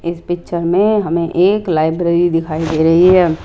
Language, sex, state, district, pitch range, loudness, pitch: Hindi, female, Rajasthan, Jaipur, 165-180 Hz, -14 LUFS, 170 Hz